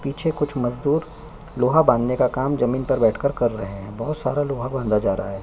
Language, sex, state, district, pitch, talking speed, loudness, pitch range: Hindi, male, Chhattisgarh, Kabirdham, 130 Hz, 220 wpm, -22 LUFS, 120-150 Hz